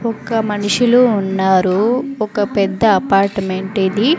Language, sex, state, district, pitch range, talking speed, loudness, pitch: Telugu, female, Andhra Pradesh, Sri Satya Sai, 195-230 Hz, 100 wpm, -15 LUFS, 205 Hz